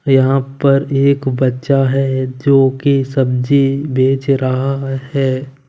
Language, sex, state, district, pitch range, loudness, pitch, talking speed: Hindi, male, Punjab, Kapurthala, 130-135 Hz, -15 LUFS, 135 Hz, 115 wpm